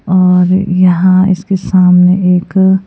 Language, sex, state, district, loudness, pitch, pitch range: Hindi, female, Himachal Pradesh, Shimla, -9 LUFS, 185 Hz, 180-190 Hz